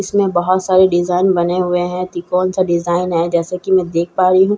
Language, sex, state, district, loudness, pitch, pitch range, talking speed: Hindi, female, Bihar, Katihar, -15 LUFS, 180 Hz, 175-185 Hz, 235 wpm